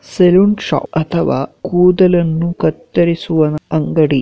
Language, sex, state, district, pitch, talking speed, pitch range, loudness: Kannada, male, Karnataka, Shimoga, 170 Hz, 85 wpm, 155-180 Hz, -14 LUFS